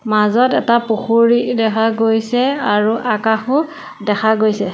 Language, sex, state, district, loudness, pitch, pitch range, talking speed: Assamese, female, Assam, Sonitpur, -15 LUFS, 225 Hz, 215-245 Hz, 115 wpm